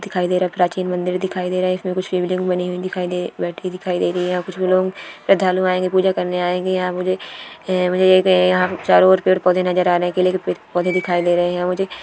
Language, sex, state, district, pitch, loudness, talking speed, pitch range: Hindi, female, West Bengal, Paschim Medinipur, 185 Hz, -18 LUFS, 260 wpm, 180-185 Hz